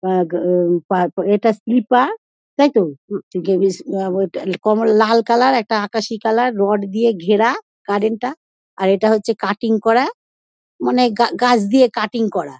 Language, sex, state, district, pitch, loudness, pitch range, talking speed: Bengali, female, West Bengal, Dakshin Dinajpur, 220 Hz, -17 LUFS, 195-235 Hz, 135 wpm